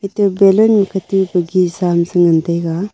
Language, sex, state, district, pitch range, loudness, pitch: Wancho, female, Arunachal Pradesh, Longding, 170-195 Hz, -14 LUFS, 185 Hz